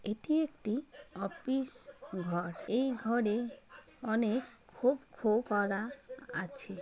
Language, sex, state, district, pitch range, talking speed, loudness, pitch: Bengali, female, West Bengal, Kolkata, 210-265 Hz, 95 wpm, -35 LUFS, 240 Hz